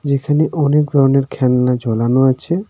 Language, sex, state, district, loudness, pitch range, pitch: Bengali, male, West Bengal, Darjeeling, -15 LUFS, 125-150 Hz, 135 Hz